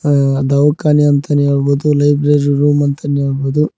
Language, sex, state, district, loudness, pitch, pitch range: Kannada, male, Karnataka, Koppal, -13 LUFS, 145 Hz, 140-145 Hz